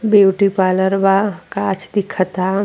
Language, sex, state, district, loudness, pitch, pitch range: Hindi, female, Bihar, Vaishali, -16 LUFS, 195 Hz, 185-200 Hz